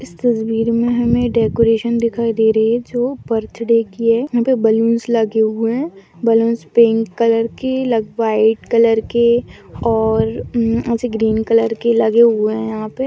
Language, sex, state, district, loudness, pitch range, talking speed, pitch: Hindi, female, Bihar, Madhepura, -16 LUFS, 225-235 Hz, 170 wpm, 230 Hz